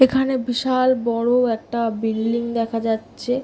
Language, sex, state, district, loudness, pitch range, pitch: Bengali, female, West Bengal, Paschim Medinipur, -21 LUFS, 225-255 Hz, 235 Hz